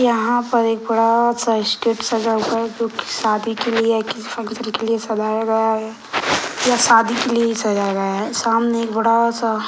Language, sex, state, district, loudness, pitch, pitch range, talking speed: Hindi, male, Bihar, Sitamarhi, -18 LUFS, 225 Hz, 220-230 Hz, 200 wpm